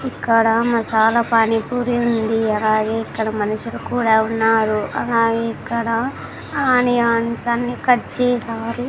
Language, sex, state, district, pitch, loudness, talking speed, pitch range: Telugu, female, Andhra Pradesh, Sri Satya Sai, 230 Hz, -18 LUFS, 100 wpm, 225-240 Hz